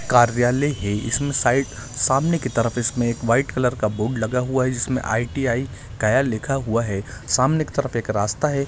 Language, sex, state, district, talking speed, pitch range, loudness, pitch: Hindi, male, Bihar, Gaya, 200 wpm, 115-135 Hz, -21 LUFS, 120 Hz